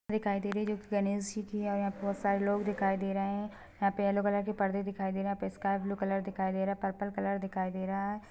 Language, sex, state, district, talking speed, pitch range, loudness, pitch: Hindi, female, Chhattisgarh, Balrampur, 320 wpm, 195-205 Hz, -33 LUFS, 200 Hz